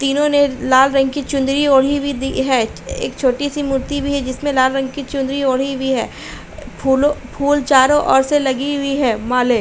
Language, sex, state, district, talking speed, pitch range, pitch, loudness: Hindi, female, Uttar Pradesh, Hamirpur, 205 wpm, 265-285 Hz, 275 Hz, -16 LUFS